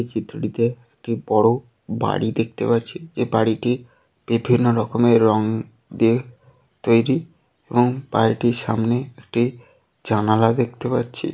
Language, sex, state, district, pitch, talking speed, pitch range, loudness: Bengali, male, West Bengal, Jalpaiguri, 120 Hz, 110 wpm, 115-125 Hz, -20 LUFS